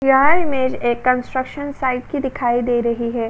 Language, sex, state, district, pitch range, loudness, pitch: Hindi, female, Uttar Pradesh, Budaun, 240-270 Hz, -19 LUFS, 255 Hz